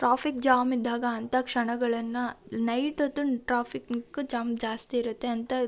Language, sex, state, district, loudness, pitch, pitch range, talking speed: Kannada, female, Karnataka, Shimoga, -29 LUFS, 245 Hz, 235-255 Hz, 125 wpm